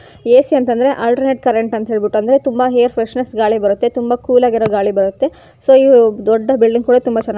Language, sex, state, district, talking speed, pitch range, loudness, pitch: Kannada, female, Karnataka, Gulbarga, 205 wpm, 225-255 Hz, -13 LUFS, 240 Hz